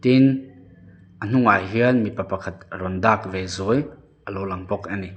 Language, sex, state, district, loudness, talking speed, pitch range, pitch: Mizo, male, Mizoram, Aizawl, -22 LUFS, 160 wpm, 95-125 Hz, 100 Hz